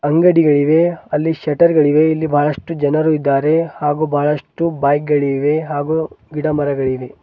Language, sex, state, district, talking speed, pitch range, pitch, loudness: Kannada, male, Karnataka, Bidar, 110 wpm, 145-160 Hz, 150 Hz, -16 LUFS